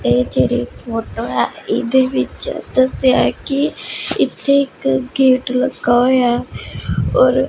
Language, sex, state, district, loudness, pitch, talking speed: Punjabi, female, Punjab, Pathankot, -17 LUFS, 245 Hz, 130 wpm